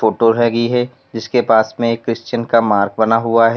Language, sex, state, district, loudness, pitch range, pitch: Hindi, male, Uttar Pradesh, Lalitpur, -15 LUFS, 110-120 Hz, 115 Hz